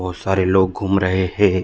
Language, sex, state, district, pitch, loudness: Hindi, male, Chhattisgarh, Bilaspur, 95 Hz, -18 LUFS